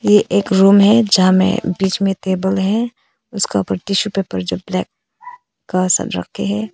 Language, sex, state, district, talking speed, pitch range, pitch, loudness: Hindi, female, Arunachal Pradesh, Papum Pare, 180 wpm, 185-210 Hz, 195 Hz, -16 LUFS